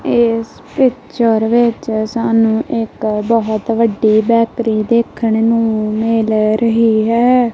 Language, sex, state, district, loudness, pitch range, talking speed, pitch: Punjabi, female, Punjab, Kapurthala, -14 LUFS, 220-230 Hz, 105 wpm, 225 Hz